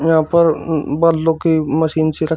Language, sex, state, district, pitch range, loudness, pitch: Hindi, male, Uttar Pradesh, Shamli, 155-165 Hz, -16 LUFS, 160 Hz